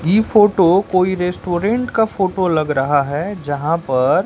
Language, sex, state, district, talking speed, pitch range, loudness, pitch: Hindi, male, Bihar, West Champaran, 155 wpm, 155-200 Hz, -16 LUFS, 180 Hz